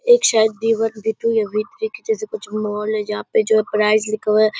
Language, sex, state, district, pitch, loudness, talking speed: Hindi, female, Bihar, Purnia, 220 Hz, -19 LUFS, 285 wpm